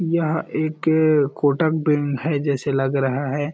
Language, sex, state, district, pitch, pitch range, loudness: Hindi, male, Chhattisgarh, Balrampur, 145 Hz, 140-160 Hz, -20 LUFS